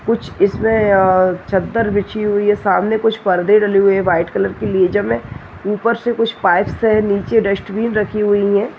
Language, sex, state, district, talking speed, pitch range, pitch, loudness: Hindi, female, Chhattisgarh, Balrampur, 185 wpm, 195-220 Hz, 205 Hz, -15 LUFS